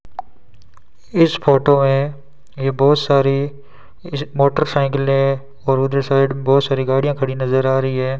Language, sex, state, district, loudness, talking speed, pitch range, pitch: Hindi, male, Rajasthan, Bikaner, -17 LUFS, 130 wpm, 135-140 Hz, 135 Hz